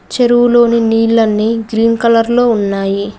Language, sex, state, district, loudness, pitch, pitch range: Telugu, female, Telangana, Mahabubabad, -11 LUFS, 230 Hz, 220-235 Hz